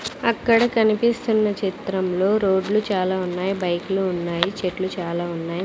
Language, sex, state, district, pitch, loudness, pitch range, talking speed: Telugu, female, Andhra Pradesh, Sri Satya Sai, 190 Hz, -22 LUFS, 180-215 Hz, 115 wpm